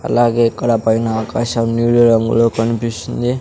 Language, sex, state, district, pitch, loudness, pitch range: Telugu, male, Andhra Pradesh, Sri Satya Sai, 115 Hz, -15 LUFS, 115-120 Hz